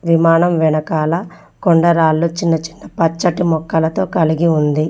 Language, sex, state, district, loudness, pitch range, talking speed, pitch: Telugu, female, Telangana, Mahabubabad, -15 LUFS, 160-170 Hz, 100 wpm, 165 Hz